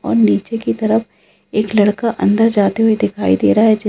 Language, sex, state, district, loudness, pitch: Hindi, female, Bihar, Saran, -15 LUFS, 205 Hz